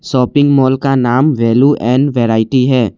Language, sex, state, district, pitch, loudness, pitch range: Hindi, male, Assam, Kamrup Metropolitan, 130 Hz, -12 LUFS, 120-140 Hz